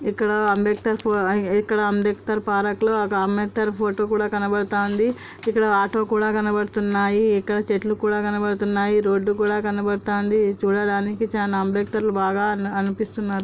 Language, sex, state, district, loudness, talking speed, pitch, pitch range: Telugu, male, Andhra Pradesh, Anantapur, -22 LUFS, 115 wpm, 205 Hz, 200-215 Hz